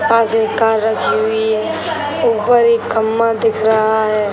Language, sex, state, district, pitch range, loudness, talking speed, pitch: Hindi, male, Bihar, Sitamarhi, 220-230 Hz, -15 LUFS, 210 wpm, 225 Hz